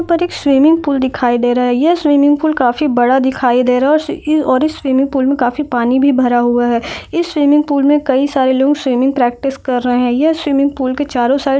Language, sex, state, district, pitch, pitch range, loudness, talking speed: Hindi, female, Bihar, Saran, 270 Hz, 250-295 Hz, -13 LUFS, 240 wpm